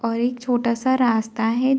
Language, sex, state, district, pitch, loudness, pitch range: Hindi, female, Uttar Pradesh, Varanasi, 240 Hz, -21 LUFS, 230-255 Hz